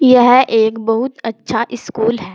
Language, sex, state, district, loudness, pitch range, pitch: Hindi, female, Uttar Pradesh, Saharanpur, -14 LUFS, 225-250 Hz, 235 Hz